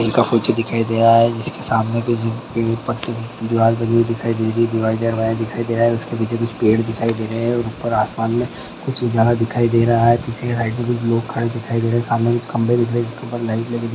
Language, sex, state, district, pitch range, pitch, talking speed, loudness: Hindi, male, Andhra Pradesh, Guntur, 115-120 Hz, 115 Hz, 240 wpm, -19 LUFS